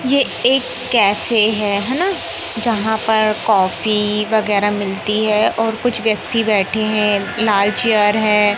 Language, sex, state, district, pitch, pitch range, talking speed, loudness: Hindi, male, Madhya Pradesh, Katni, 215 Hz, 205-225 Hz, 135 wpm, -14 LUFS